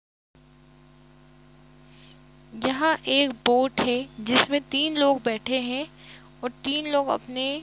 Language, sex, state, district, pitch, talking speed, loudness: Hindi, female, Jharkhand, Jamtara, 255 Hz, 100 wpm, -24 LUFS